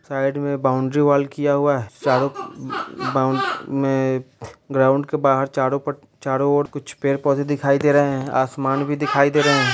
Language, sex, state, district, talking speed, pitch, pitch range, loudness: Bhojpuri, male, Bihar, Saran, 180 wpm, 140 Hz, 135-145 Hz, -20 LUFS